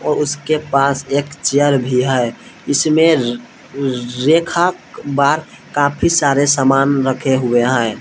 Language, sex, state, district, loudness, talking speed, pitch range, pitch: Hindi, male, Jharkhand, Palamu, -15 LUFS, 120 wpm, 130-150 Hz, 140 Hz